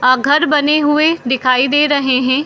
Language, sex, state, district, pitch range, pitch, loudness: Hindi, female, Bihar, Saharsa, 255-300 Hz, 285 Hz, -13 LUFS